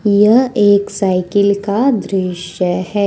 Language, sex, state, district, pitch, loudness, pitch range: Hindi, female, Jharkhand, Ranchi, 200 Hz, -14 LUFS, 185-210 Hz